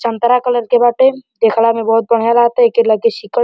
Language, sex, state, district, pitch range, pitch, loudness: Bhojpuri, male, Uttar Pradesh, Deoria, 230-245 Hz, 235 Hz, -13 LUFS